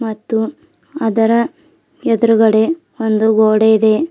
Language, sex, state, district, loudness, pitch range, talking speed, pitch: Kannada, female, Karnataka, Bidar, -14 LUFS, 220-230 Hz, 85 wpm, 225 Hz